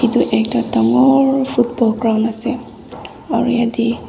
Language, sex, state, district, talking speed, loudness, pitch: Nagamese, female, Nagaland, Dimapur, 115 wpm, -15 LUFS, 230 Hz